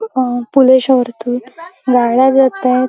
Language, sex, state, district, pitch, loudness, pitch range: Marathi, female, Maharashtra, Chandrapur, 255 Hz, -12 LUFS, 245-265 Hz